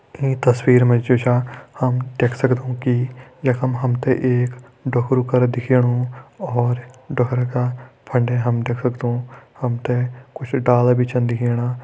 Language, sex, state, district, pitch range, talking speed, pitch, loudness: Hindi, male, Uttarakhand, Tehri Garhwal, 125-130 Hz, 150 wpm, 125 Hz, -20 LUFS